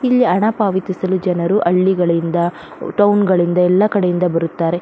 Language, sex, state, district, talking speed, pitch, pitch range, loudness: Kannada, female, Karnataka, Belgaum, 125 wpm, 185 Hz, 175-200 Hz, -16 LUFS